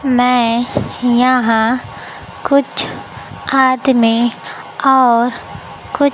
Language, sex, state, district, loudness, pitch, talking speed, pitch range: Hindi, female, Bihar, Kaimur, -14 LUFS, 250 Hz, 60 wpm, 235-265 Hz